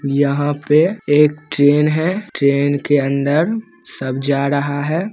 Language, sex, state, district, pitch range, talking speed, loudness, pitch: Hindi, male, Bihar, Begusarai, 140-155 Hz, 150 wpm, -16 LUFS, 145 Hz